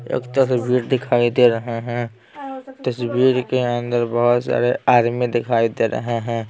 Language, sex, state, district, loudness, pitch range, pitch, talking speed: Hindi, male, Bihar, Patna, -19 LUFS, 120-125 Hz, 120 Hz, 150 wpm